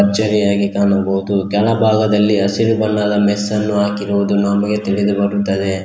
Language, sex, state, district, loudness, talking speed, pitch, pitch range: Kannada, male, Karnataka, Koppal, -15 LUFS, 90 wpm, 100 Hz, 100-105 Hz